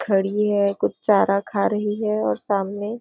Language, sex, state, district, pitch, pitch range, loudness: Hindi, female, Maharashtra, Nagpur, 205 Hz, 195-210 Hz, -21 LUFS